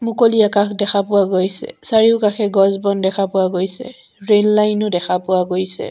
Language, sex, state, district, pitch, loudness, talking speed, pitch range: Assamese, female, Assam, Sonitpur, 200 Hz, -16 LUFS, 175 wpm, 190-210 Hz